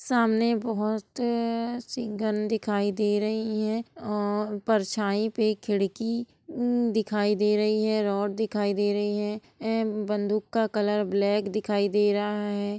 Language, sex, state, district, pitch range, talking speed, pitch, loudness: Hindi, female, Bihar, Gopalganj, 205-225 Hz, 135 wpm, 210 Hz, -27 LUFS